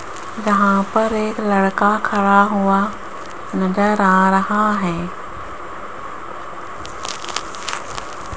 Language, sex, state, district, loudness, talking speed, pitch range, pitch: Hindi, female, Rajasthan, Jaipur, -17 LUFS, 70 wpm, 195-210 Hz, 200 Hz